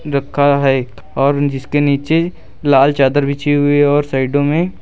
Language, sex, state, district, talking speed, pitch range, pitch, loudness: Hindi, male, Uttar Pradesh, Lucknow, 150 wpm, 135-145 Hz, 145 Hz, -14 LUFS